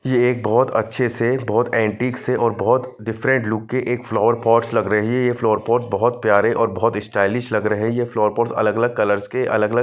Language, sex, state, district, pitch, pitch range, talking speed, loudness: Hindi, male, Punjab, Fazilka, 115 Hz, 105-125 Hz, 240 wpm, -19 LUFS